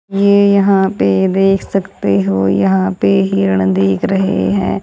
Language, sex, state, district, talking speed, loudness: Hindi, female, Haryana, Jhajjar, 150 wpm, -13 LUFS